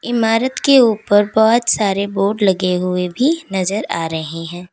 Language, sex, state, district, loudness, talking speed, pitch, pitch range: Hindi, female, Uttar Pradesh, Lalitpur, -16 LUFS, 165 wpm, 200 Hz, 180-230 Hz